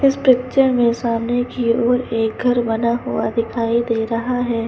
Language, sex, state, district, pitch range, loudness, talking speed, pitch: Hindi, female, Uttar Pradesh, Lucknow, 230-245 Hz, -18 LUFS, 180 wpm, 235 Hz